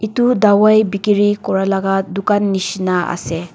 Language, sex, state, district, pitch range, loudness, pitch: Nagamese, female, Nagaland, Dimapur, 185-210 Hz, -15 LUFS, 195 Hz